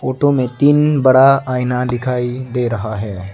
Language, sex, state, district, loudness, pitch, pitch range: Hindi, male, Arunachal Pradesh, Lower Dibang Valley, -15 LUFS, 125 Hz, 120-135 Hz